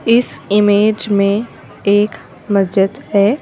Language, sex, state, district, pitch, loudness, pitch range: Hindi, female, Madhya Pradesh, Bhopal, 205 Hz, -14 LUFS, 200-215 Hz